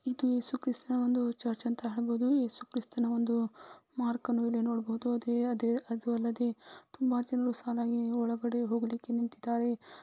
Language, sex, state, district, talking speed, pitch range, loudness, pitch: Kannada, female, Karnataka, Belgaum, 130 wpm, 235-250 Hz, -33 LUFS, 240 Hz